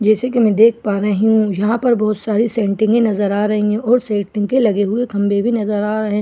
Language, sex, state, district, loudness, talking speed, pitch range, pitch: Hindi, female, Bihar, Katihar, -16 LUFS, 270 wpm, 205-225 Hz, 215 Hz